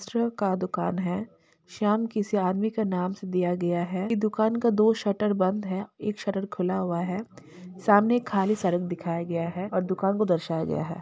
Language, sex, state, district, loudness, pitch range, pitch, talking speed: Hindi, female, Jharkhand, Jamtara, -27 LUFS, 180-210 Hz, 190 Hz, 205 wpm